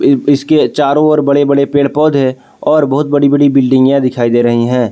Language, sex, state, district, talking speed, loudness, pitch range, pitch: Hindi, male, Jharkhand, Palamu, 195 wpm, -11 LUFS, 130-145 Hz, 140 Hz